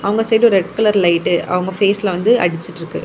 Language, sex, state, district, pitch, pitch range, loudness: Tamil, female, Tamil Nadu, Kanyakumari, 195 Hz, 175-220 Hz, -15 LUFS